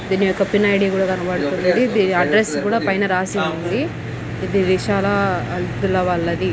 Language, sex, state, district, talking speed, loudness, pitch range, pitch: Telugu, female, Telangana, Nalgonda, 145 wpm, -19 LUFS, 180-200 Hz, 195 Hz